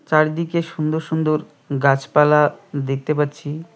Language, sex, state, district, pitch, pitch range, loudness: Bengali, male, West Bengal, Cooch Behar, 150 Hz, 145-160 Hz, -19 LUFS